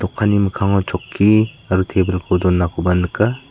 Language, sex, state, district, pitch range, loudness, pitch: Garo, male, Meghalaya, South Garo Hills, 90-105 Hz, -17 LUFS, 95 Hz